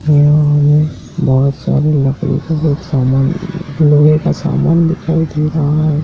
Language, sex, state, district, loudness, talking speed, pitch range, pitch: Hindi, male, Madhya Pradesh, Dhar, -13 LUFS, 150 wpm, 145-160 Hz, 150 Hz